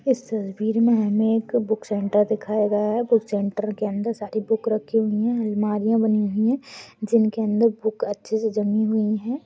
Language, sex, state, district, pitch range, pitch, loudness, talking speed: Hindi, female, Goa, North and South Goa, 210-225 Hz, 220 Hz, -22 LUFS, 195 wpm